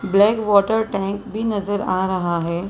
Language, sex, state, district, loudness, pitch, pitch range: Hindi, female, Maharashtra, Mumbai Suburban, -20 LUFS, 200 Hz, 185-215 Hz